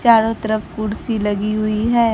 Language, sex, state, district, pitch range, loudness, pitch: Hindi, female, Bihar, Kaimur, 215-225 Hz, -19 LUFS, 220 Hz